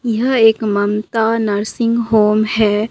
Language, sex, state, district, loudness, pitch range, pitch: Hindi, female, Bihar, Katihar, -15 LUFS, 210-230 Hz, 220 Hz